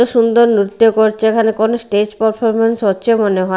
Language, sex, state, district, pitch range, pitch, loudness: Bengali, female, Odisha, Malkangiri, 210-230 Hz, 220 Hz, -13 LUFS